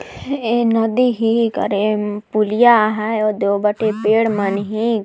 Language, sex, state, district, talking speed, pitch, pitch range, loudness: Sadri, female, Chhattisgarh, Jashpur, 155 wpm, 215 Hz, 210-230 Hz, -17 LUFS